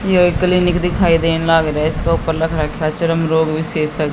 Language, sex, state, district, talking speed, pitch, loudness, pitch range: Hindi, female, Haryana, Jhajjar, 130 wpm, 165 Hz, -16 LUFS, 155-175 Hz